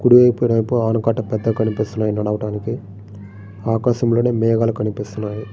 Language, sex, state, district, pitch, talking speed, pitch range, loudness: Telugu, male, Andhra Pradesh, Srikakulam, 110 Hz, 85 wpm, 105-115 Hz, -19 LUFS